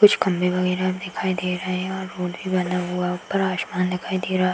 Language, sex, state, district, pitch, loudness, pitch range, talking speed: Hindi, female, Uttar Pradesh, Hamirpur, 185 Hz, -24 LUFS, 180-185 Hz, 235 wpm